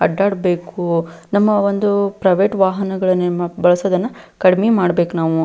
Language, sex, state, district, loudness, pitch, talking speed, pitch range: Kannada, female, Karnataka, Belgaum, -16 LUFS, 185 Hz, 90 wpm, 175-200 Hz